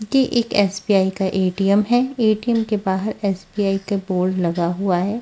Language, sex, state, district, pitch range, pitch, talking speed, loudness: Hindi, female, Punjab, Fazilka, 190-215 Hz, 200 Hz, 170 wpm, -20 LUFS